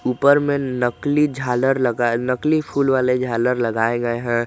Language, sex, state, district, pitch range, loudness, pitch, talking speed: Hindi, male, Jharkhand, Garhwa, 120-140 Hz, -19 LUFS, 125 Hz, 160 wpm